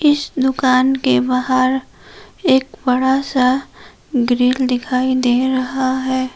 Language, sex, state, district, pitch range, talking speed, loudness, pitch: Hindi, female, Jharkhand, Palamu, 255-265 Hz, 115 wpm, -16 LUFS, 260 Hz